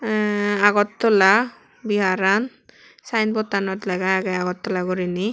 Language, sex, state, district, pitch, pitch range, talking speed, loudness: Chakma, female, Tripura, West Tripura, 205 Hz, 190-215 Hz, 110 wpm, -20 LUFS